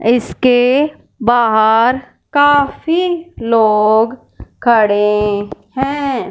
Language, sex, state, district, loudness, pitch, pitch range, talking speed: Hindi, male, Punjab, Fazilka, -13 LUFS, 240 Hz, 220-280 Hz, 55 wpm